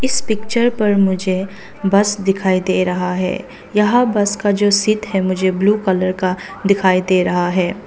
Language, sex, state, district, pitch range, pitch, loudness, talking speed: Hindi, female, Arunachal Pradesh, Papum Pare, 185-205 Hz, 195 Hz, -16 LUFS, 175 wpm